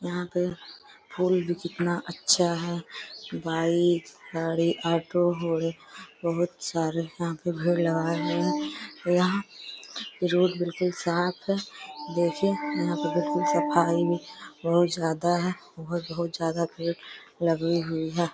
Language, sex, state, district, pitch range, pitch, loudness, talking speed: Hindi, female, Uttar Pradesh, Deoria, 165-180 Hz, 170 Hz, -27 LUFS, 125 wpm